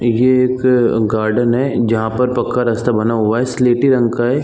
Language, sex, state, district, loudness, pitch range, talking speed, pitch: Hindi, male, Chhattisgarh, Bilaspur, -15 LUFS, 115-125 Hz, 215 wpm, 120 Hz